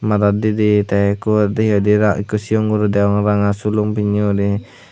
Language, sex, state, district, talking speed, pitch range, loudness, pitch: Chakma, male, Tripura, Unakoti, 160 wpm, 100-105 Hz, -16 LUFS, 105 Hz